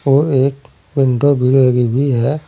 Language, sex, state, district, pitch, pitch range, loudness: Hindi, male, Uttar Pradesh, Saharanpur, 135 Hz, 125-140 Hz, -14 LUFS